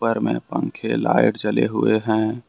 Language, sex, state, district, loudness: Hindi, male, Jharkhand, Ranchi, -21 LUFS